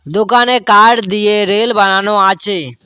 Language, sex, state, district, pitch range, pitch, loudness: Bengali, male, West Bengal, Cooch Behar, 195-220 Hz, 205 Hz, -10 LUFS